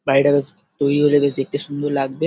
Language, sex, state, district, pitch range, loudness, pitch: Bengali, male, West Bengal, Paschim Medinipur, 135-145 Hz, -19 LUFS, 145 Hz